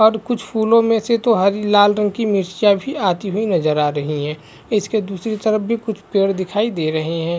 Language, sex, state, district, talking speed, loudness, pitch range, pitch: Hindi, male, Chhattisgarh, Bilaspur, 225 wpm, -18 LUFS, 180-220 Hz, 205 Hz